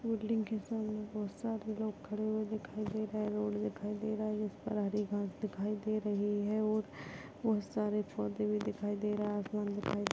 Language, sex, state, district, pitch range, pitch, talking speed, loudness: Hindi, female, Chhattisgarh, Bastar, 205-215 Hz, 210 Hz, 215 wpm, -37 LUFS